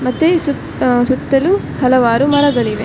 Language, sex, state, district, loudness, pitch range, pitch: Kannada, female, Karnataka, Dakshina Kannada, -14 LUFS, 245-285 Hz, 260 Hz